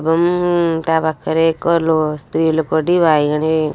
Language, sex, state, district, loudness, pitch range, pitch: Odia, female, Odisha, Nuapada, -16 LUFS, 155-170 Hz, 160 Hz